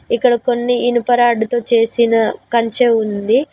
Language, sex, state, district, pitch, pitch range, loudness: Telugu, female, Telangana, Mahabubabad, 235 Hz, 230-245 Hz, -15 LUFS